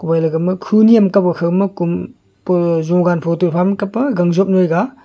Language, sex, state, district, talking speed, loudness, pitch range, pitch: Wancho, male, Arunachal Pradesh, Longding, 145 wpm, -15 LUFS, 170-200 Hz, 180 Hz